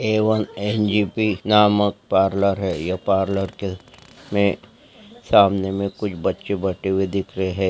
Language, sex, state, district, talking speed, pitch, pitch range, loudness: Hindi, male, Andhra Pradesh, Chittoor, 140 wpm, 100 Hz, 95-105 Hz, -20 LUFS